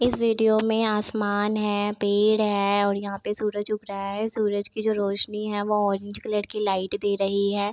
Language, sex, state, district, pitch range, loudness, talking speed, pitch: Hindi, female, Bihar, Begusarai, 200-215 Hz, -25 LUFS, 210 wpm, 205 Hz